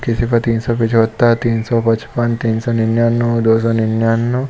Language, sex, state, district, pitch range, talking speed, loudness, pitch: Hindi, male, Jharkhand, Sahebganj, 115-120 Hz, 185 wpm, -15 LUFS, 115 Hz